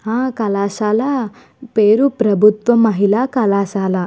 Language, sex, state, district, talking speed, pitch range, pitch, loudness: Telugu, female, Andhra Pradesh, Guntur, 90 wpm, 200-240 Hz, 215 Hz, -15 LUFS